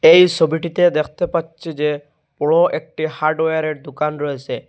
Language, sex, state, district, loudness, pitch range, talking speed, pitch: Bengali, male, Assam, Hailakandi, -18 LUFS, 150-170 Hz, 130 wpm, 155 Hz